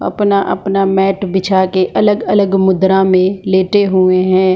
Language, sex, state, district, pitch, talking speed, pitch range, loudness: Hindi, female, Bihar, Jamui, 190 Hz, 120 wpm, 185-195 Hz, -12 LUFS